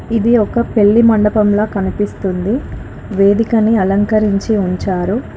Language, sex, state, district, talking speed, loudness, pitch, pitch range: Telugu, female, Telangana, Karimnagar, 100 wpm, -14 LUFS, 210 Hz, 195-225 Hz